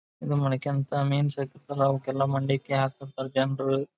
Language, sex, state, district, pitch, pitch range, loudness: Kannada, male, Karnataka, Belgaum, 135 Hz, 135-140 Hz, -28 LUFS